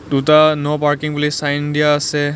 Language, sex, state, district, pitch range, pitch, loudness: Assamese, male, Assam, Kamrup Metropolitan, 145-150 Hz, 150 Hz, -15 LUFS